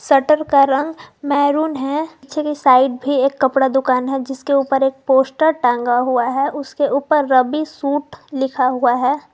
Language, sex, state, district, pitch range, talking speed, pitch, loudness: Hindi, female, Jharkhand, Garhwa, 265-290 Hz, 175 wpm, 275 Hz, -17 LUFS